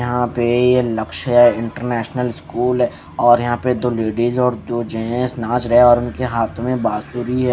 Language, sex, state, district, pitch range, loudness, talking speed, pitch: Hindi, male, Haryana, Charkhi Dadri, 115-125 Hz, -17 LUFS, 205 wpm, 120 Hz